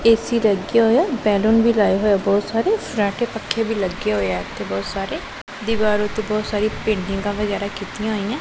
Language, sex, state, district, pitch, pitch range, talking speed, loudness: Punjabi, female, Punjab, Pathankot, 210 Hz, 200-225 Hz, 200 wpm, -20 LUFS